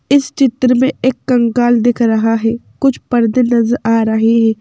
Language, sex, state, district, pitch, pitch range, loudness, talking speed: Hindi, female, Madhya Pradesh, Bhopal, 240 Hz, 225-255 Hz, -13 LUFS, 180 wpm